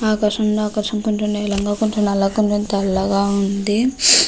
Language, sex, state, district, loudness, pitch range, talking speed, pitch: Telugu, female, Andhra Pradesh, Guntur, -18 LUFS, 200-215 Hz, 125 wpm, 210 Hz